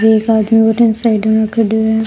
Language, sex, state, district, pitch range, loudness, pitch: Rajasthani, female, Rajasthan, Churu, 220-225 Hz, -12 LUFS, 220 Hz